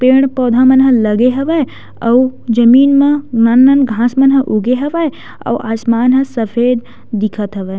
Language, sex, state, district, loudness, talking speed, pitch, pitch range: Chhattisgarhi, female, Chhattisgarh, Sukma, -12 LUFS, 155 wpm, 250 Hz, 230-270 Hz